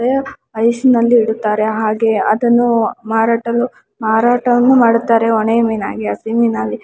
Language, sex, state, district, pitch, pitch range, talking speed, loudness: Kannada, female, Karnataka, Mysore, 230 Hz, 220-240 Hz, 115 wpm, -14 LUFS